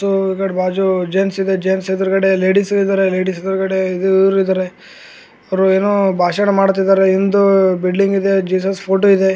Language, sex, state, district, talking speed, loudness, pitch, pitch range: Kannada, male, Karnataka, Gulbarga, 130 wpm, -15 LUFS, 190 Hz, 190-195 Hz